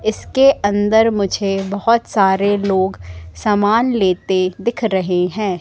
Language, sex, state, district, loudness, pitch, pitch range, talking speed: Hindi, female, Madhya Pradesh, Katni, -16 LUFS, 200 Hz, 190-220 Hz, 120 wpm